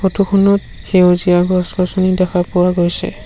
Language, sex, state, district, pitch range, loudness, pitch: Assamese, male, Assam, Sonitpur, 180-195 Hz, -14 LUFS, 185 Hz